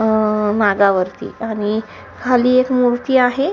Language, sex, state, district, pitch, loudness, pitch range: Marathi, female, Maharashtra, Sindhudurg, 220 Hz, -16 LUFS, 210-250 Hz